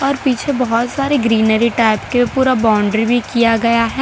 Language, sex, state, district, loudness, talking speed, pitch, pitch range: Hindi, female, Gujarat, Valsad, -15 LUFS, 180 wpm, 235 Hz, 225-260 Hz